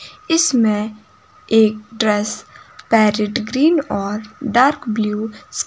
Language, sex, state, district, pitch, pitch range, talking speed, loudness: Hindi, female, Himachal Pradesh, Shimla, 220 Hz, 210-280 Hz, 95 wpm, -17 LUFS